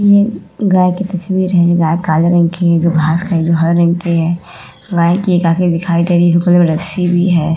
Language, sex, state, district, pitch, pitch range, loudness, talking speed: Hindi, female, Uttar Pradesh, Muzaffarnagar, 175 Hz, 170-180 Hz, -13 LUFS, 245 wpm